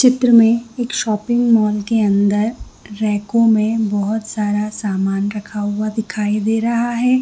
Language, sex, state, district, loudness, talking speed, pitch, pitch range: Hindi, female, Chhattisgarh, Bilaspur, -17 LUFS, 150 wpm, 215 Hz, 210-230 Hz